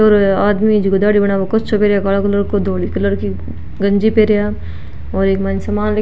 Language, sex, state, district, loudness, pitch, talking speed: Marwari, female, Rajasthan, Nagaur, -15 LUFS, 200 Hz, 200 wpm